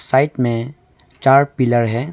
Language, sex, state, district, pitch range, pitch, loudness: Hindi, male, Arunachal Pradesh, Longding, 120-140 Hz, 130 Hz, -16 LUFS